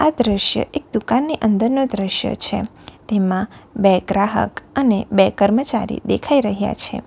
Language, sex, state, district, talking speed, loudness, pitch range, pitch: Gujarati, female, Gujarat, Valsad, 135 wpm, -18 LUFS, 200-250 Hz, 220 Hz